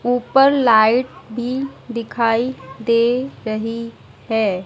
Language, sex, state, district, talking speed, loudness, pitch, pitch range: Hindi, female, Madhya Pradesh, Dhar, 90 wpm, -18 LUFS, 235 Hz, 225-250 Hz